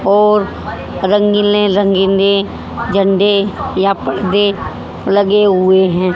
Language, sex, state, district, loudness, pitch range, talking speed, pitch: Hindi, female, Haryana, Jhajjar, -13 LUFS, 195-205 Hz, 85 wpm, 200 Hz